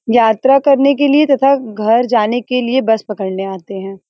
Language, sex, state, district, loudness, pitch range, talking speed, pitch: Hindi, female, Uttar Pradesh, Varanasi, -13 LUFS, 210-270 Hz, 190 wpm, 235 Hz